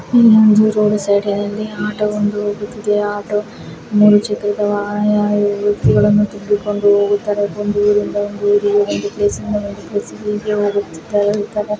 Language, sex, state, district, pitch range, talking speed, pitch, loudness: Kannada, female, Karnataka, Gulbarga, 205-210 Hz, 135 wpm, 205 Hz, -16 LUFS